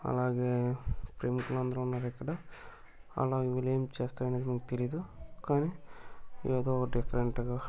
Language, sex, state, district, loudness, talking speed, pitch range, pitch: Telugu, male, Andhra Pradesh, Krishna, -34 LUFS, 110 wpm, 125-130 Hz, 125 Hz